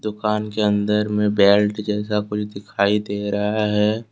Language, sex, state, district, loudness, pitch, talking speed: Hindi, male, Jharkhand, Deoghar, -20 LUFS, 105 Hz, 160 wpm